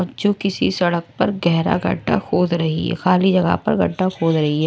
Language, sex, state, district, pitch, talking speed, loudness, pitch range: Hindi, male, Odisha, Malkangiri, 180 Hz, 205 wpm, -18 LUFS, 165-185 Hz